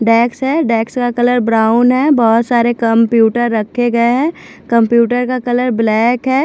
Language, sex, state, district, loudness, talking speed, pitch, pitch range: Hindi, female, Punjab, Fazilka, -13 LUFS, 165 wpm, 240 Hz, 230-250 Hz